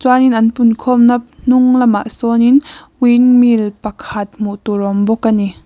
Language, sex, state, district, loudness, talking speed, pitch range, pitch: Mizo, female, Mizoram, Aizawl, -12 LUFS, 170 wpm, 210-250 Hz, 235 Hz